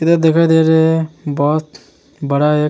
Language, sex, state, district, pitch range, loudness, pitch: Hindi, male, Bihar, Vaishali, 150-160 Hz, -14 LUFS, 155 Hz